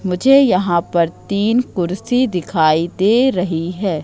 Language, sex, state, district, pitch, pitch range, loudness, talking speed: Hindi, female, Madhya Pradesh, Katni, 185 Hz, 170-225 Hz, -16 LUFS, 135 wpm